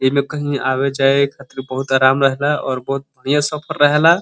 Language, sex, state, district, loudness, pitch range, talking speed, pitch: Bhojpuri, male, Uttar Pradesh, Deoria, -17 LUFS, 135-145 Hz, 200 wpm, 135 Hz